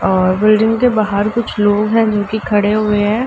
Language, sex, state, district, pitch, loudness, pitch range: Hindi, female, Uttar Pradesh, Ghazipur, 210 Hz, -14 LUFS, 205-220 Hz